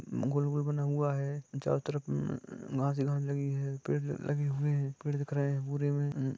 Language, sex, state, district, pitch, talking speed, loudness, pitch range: Hindi, male, Jharkhand, Sahebganj, 140 Hz, 215 wpm, -33 LUFS, 135-145 Hz